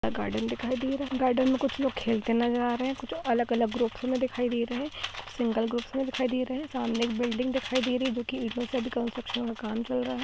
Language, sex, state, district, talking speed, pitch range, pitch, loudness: Hindi, female, Andhra Pradesh, Anantapur, 250 wpm, 235-255 Hz, 245 Hz, -29 LUFS